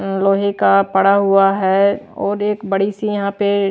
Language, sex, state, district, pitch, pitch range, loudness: Hindi, female, Maharashtra, Washim, 200 Hz, 195-200 Hz, -16 LUFS